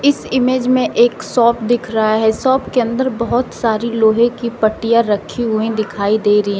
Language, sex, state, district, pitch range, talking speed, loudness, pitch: Hindi, female, Uttar Pradesh, Shamli, 220-245 Hz, 200 wpm, -15 LUFS, 235 Hz